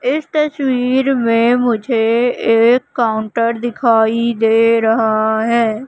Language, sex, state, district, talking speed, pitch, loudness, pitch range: Hindi, female, Madhya Pradesh, Katni, 100 wpm, 230 Hz, -14 LUFS, 225-245 Hz